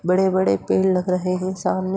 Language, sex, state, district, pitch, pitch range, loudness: Hindi, female, Uttar Pradesh, Etah, 185 Hz, 180-190 Hz, -20 LUFS